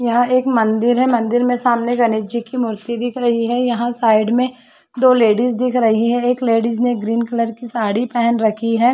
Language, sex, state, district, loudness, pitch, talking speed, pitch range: Hindi, female, Uttar Pradesh, Varanasi, -17 LUFS, 240 Hz, 215 wpm, 230-245 Hz